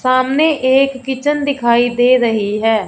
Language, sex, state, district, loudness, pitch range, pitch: Hindi, female, Punjab, Fazilka, -14 LUFS, 235-270 Hz, 255 Hz